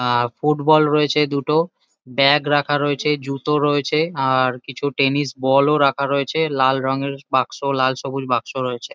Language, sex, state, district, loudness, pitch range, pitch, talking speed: Bengali, male, West Bengal, Jalpaiguri, -19 LUFS, 130-150 Hz, 140 Hz, 155 wpm